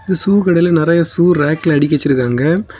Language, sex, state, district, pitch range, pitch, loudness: Tamil, male, Tamil Nadu, Kanyakumari, 150-175 Hz, 165 Hz, -13 LUFS